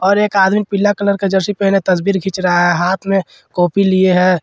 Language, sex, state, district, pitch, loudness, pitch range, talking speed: Hindi, male, Jharkhand, Ranchi, 190 Hz, -14 LUFS, 185-200 Hz, 230 wpm